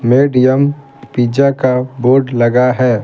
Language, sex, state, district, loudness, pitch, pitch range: Hindi, male, Bihar, Patna, -12 LUFS, 130 Hz, 125-135 Hz